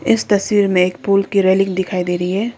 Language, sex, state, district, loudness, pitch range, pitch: Hindi, female, Arunachal Pradesh, Lower Dibang Valley, -16 LUFS, 185-205 Hz, 195 Hz